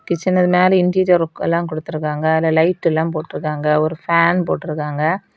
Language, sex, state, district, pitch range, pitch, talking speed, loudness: Tamil, female, Tamil Nadu, Kanyakumari, 155-180 Hz, 165 Hz, 145 wpm, -17 LUFS